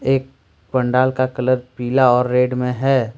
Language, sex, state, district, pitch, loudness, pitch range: Hindi, male, Jharkhand, Ranchi, 125 Hz, -18 LUFS, 125-130 Hz